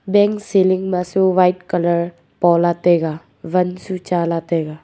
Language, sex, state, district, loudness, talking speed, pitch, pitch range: Wancho, female, Arunachal Pradesh, Longding, -18 LUFS, 150 wpm, 175 Hz, 170-185 Hz